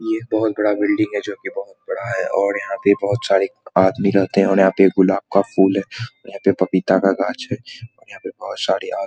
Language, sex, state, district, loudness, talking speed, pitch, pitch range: Hindi, male, Bihar, Muzaffarpur, -18 LUFS, 265 wpm, 100 Hz, 95-110 Hz